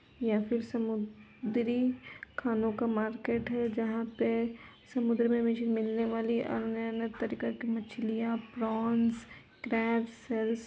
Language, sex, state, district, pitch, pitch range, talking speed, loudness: Hindi, female, Uttar Pradesh, Etah, 230 Hz, 225-235 Hz, 130 wpm, -32 LUFS